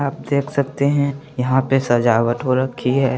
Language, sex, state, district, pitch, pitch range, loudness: Hindi, male, Chandigarh, Chandigarh, 135 Hz, 125-140 Hz, -19 LUFS